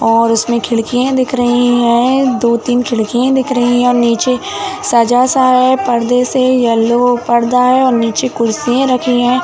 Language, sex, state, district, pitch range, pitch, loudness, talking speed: Hindi, female, Uttar Pradesh, Jalaun, 235-255 Hz, 245 Hz, -12 LUFS, 165 wpm